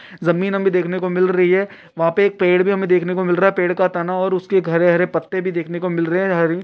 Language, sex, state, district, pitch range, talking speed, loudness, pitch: Hindi, male, Uttar Pradesh, Ghazipur, 175-190 Hz, 290 wpm, -18 LUFS, 180 Hz